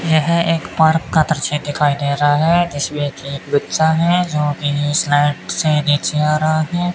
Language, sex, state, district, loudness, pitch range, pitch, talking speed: Hindi, male, Rajasthan, Bikaner, -16 LUFS, 145-160 Hz, 150 Hz, 190 wpm